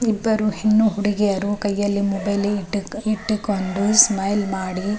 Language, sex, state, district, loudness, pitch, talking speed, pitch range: Kannada, female, Karnataka, Raichur, -20 LUFS, 205 Hz, 120 wpm, 200-215 Hz